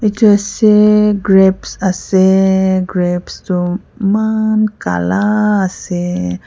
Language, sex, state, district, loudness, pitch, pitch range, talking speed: Nagamese, female, Nagaland, Kohima, -13 LUFS, 190 Hz, 180-210 Hz, 85 wpm